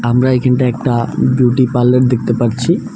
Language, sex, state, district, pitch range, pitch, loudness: Bengali, male, West Bengal, Alipurduar, 120-130 Hz, 125 Hz, -13 LUFS